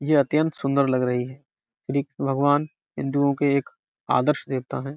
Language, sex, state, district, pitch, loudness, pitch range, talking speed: Hindi, male, Uttar Pradesh, Budaun, 140 Hz, -23 LUFS, 135-145 Hz, 155 wpm